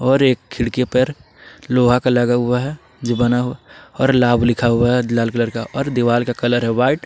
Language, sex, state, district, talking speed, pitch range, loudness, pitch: Hindi, male, Jharkhand, Palamu, 230 wpm, 120-125 Hz, -17 LUFS, 120 Hz